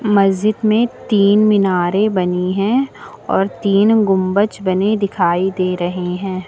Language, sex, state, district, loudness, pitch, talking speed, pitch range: Hindi, female, Uttar Pradesh, Lucknow, -16 LUFS, 195 Hz, 130 wpm, 185-210 Hz